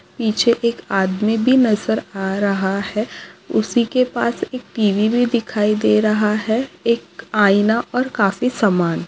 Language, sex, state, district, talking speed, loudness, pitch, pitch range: Hindi, female, Maharashtra, Nagpur, 150 wpm, -18 LUFS, 220 Hz, 205-235 Hz